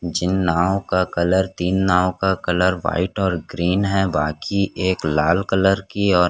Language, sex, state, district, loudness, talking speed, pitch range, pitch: Hindi, male, Chhattisgarh, Korba, -20 LUFS, 170 wpm, 90-95 Hz, 90 Hz